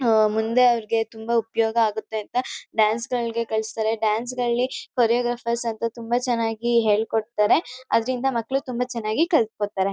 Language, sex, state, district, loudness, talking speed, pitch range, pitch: Kannada, female, Karnataka, Chamarajanagar, -23 LUFS, 140 wpm, 220-245 Hz, 230 Hz